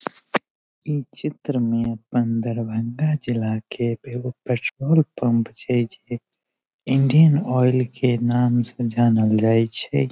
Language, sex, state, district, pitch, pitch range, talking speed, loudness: Maithili, male, Bihar, Darbhanga, 120 Hz, 115-125 Hz, 125 wpm, -21 LUFS